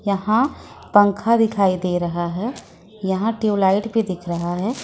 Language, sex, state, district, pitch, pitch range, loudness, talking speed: Hindi, female, Jharkhand, Ranchi, 200 Hz, 180-225 Hz, -20 LUFS, 150 wpm